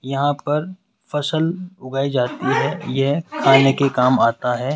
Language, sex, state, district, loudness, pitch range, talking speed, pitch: Hindi, male, Rajasthan, Jaipur, -19 LUFS, 130-160 Hz, 150 wpm, 140 Hz